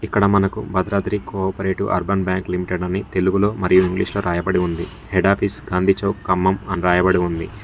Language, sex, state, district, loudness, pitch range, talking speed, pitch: Telugu, male, Telangana, Mahabubabad, -19 LUFS, 90-100 Hz, 175 wpm, 95 Hz